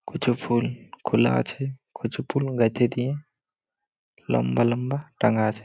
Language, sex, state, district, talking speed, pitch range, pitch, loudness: Bengali, male, West Bengal, Malda, 150 wpm, 110-135 Hz, 120 Hz, -25 LUFS